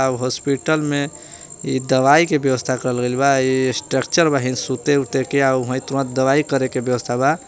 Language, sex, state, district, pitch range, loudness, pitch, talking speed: Bhojpuri, male, Jharkhand, Palamu, 130-140 Hz, -18 LUFS, 130 Hz, 175 wpm